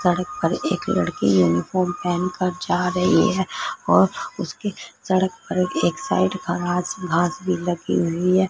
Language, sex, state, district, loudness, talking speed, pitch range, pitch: Hindi, female, Punjab, Fazilka, -22 LUFS, 155 wpm, 175-185 Hz, 180 Hz